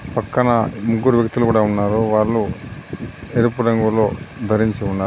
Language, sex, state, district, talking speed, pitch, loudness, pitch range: Telugu, male, Telangana, Adilabad, 120 wpm, 110 Hz, -18 LUFS, 110-120 Hz